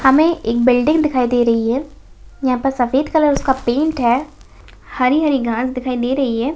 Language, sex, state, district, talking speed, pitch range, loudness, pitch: Hindi, female, Bihar, Jahanabad, 185 wpm, 245-290 Hz, -16 LUFS, 260 Hz